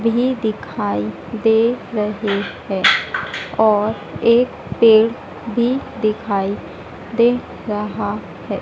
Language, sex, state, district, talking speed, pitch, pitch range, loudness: Hindi, female, Madhya Pradesh, Dhar, 90 wpm, 220 Hz, 210-235 Hz, -18 LUFS